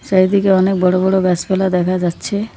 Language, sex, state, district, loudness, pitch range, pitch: Bengali, female, West Bengal, Cooch Behar, -15 LUFS, 180-195 Hz, 190 Hz